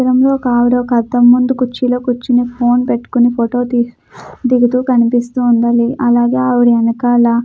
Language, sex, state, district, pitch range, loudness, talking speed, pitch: Telugu, female, Andhra Pradesh, Krishna, 240-250 Hz, -13 LUFS, 130 wpm, 245 Hz